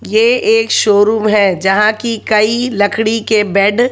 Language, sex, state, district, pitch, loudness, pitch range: Hindi, male, Haryana, Jhajjar, 215 Hz, -12 LUFS, 205-235 Hz